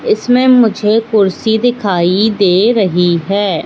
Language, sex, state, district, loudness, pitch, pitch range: Hindi, female, Madhya Pradesh, Katni, -11 LUFS, 210 Hz, 190-225 Hz